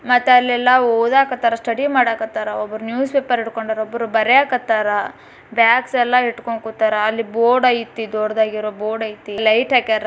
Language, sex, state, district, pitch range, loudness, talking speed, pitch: Kannada, female, Karnataka, Bijapur, 220-250 Hz, -17 LUFS, 130 wpm, 230 Hz